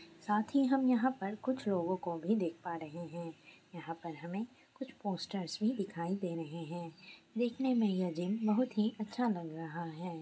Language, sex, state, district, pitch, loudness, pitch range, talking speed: Hindi, female, Maharashtra, Aurangabad, 185 Hz, -36 LUFS, 170-220 Hz, 195 wpm